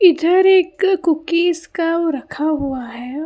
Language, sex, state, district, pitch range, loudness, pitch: Hindi, female, Karnataka, Bangalore, 300-355 Hz, -17 LUFS, 330 Hz